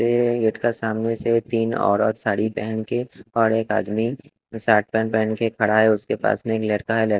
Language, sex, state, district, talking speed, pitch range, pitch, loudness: Hindi, male, Chhattisgarh, Raipur, 225 wpm, 110-115 Hz, 110 Hz, -21 LUFS